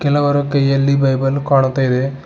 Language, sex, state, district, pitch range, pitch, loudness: Kannada, male, Karnataka, Bidar, 135-140 Hz, 135 Hz, -15 LUFS